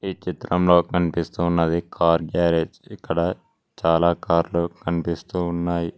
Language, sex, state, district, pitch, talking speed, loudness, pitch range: Telugu, male, Telangana, Mahabubabad, 85 Hz, 110 wpm, -22 LUFS, 85-90 Hz